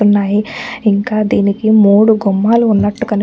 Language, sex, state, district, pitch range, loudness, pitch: Telugu, female, Andhra Pradesh, Anantapur, 205-220 Hz, -12 LUFS, 210 Hz